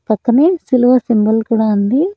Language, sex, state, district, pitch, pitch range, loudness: Telugu, female, Andhra Pradesh, Annamaya, 240 Hz, 220-270 Hz, -13 LUFS